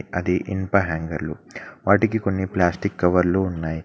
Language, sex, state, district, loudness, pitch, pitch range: Telugu, male, Telangana, Mahabubabad, -22 LUFS, 90 Hz, 85-95 Hz